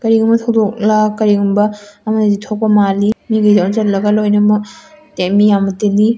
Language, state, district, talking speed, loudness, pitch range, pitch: Manipuri, Manipur, Imphal West, 105 wpm, -13 LUFS, 205-220 Hz, 210 Hz